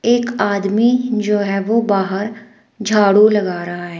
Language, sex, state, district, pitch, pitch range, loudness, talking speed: Hindi, female, Himachal Pradesh, Shimla, 210 Hz, 195-230 Hz, -16 LUFS, 150 wpm